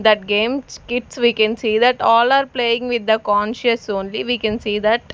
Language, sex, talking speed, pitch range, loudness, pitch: English, female, 210 wpm, 215-240 Hz, -18 LUFS, 230 Hz